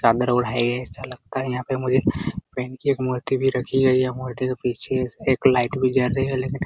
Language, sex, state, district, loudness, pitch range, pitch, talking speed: Hindi, male, Bihar, Araria, -22 LUFS, 125-130 Hz, 130 Hz, 245 wpm